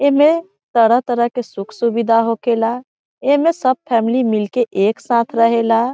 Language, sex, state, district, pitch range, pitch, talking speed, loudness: Bhojpuri, female, Bihar, Saran, 230-255 Hz, 235 Hz, 130 wpm, -16 LUFS